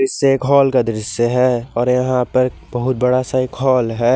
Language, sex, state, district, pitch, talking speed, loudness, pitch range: Hindi, male, Jharkhand, Garhwa, 125 Hz, 215 wpm, -16 LUFS, 120-130 Hz